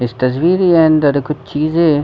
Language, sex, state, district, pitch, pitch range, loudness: Hindi, male, Jharkhand, Sahebganj, 150 Hz, 140-165 Hz, -13 LUFS